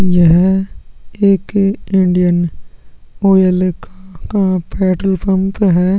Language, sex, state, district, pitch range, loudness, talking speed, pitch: Hindi, male, Chhattisgarh, Sukma, 180-195 Hz, -14 LUFS, 80 wpm, 190 Hz